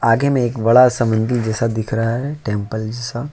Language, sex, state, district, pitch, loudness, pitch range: Hindi, male, Jharkhand, Ranchi, 115 Hz, -17 LUFS, 110-120 Hz